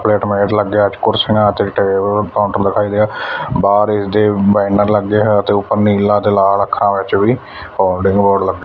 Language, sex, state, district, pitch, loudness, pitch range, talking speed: Punjabi, male, Punjab, Fazilka, 100 Hz, -14 LUFS, 100-105 Hz, 185 wpm